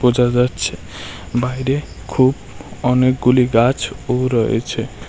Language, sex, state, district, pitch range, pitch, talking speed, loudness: Bengali, male, Tripura, West Tripura, 120-130 Hz, 125 Hz, 95 wpm, -17 LUFS